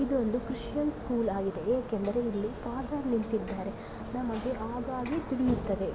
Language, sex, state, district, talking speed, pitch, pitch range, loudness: Kannada, female, Karnataka, Belgaum, 120 wpm, 245 Hz, 220-255 Hz, -32 LUFS